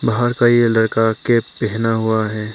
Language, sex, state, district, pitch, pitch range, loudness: Hindi, male, Arunachal Pradesh, Papum Pare, 115 Hz, 110-120 Hz, -16 LUFS